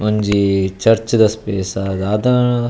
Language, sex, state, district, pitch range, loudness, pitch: Tulu, male, Karnataka, Dakshina Kannada, 95-115 Hz, -16 LUFS, 105 Hz